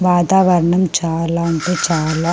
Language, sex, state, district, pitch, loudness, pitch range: Telugu, female, Andhra Pradesh, Sri Satya Sai, 170 Hz, -15 LUFS, 165-180 Hz